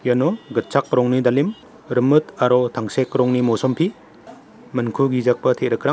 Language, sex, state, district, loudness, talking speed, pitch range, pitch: Garo, male, Meghalaya, West Garo Hills, -19 LUFS, 120 wpm, 125-140 Hz, 125 Hz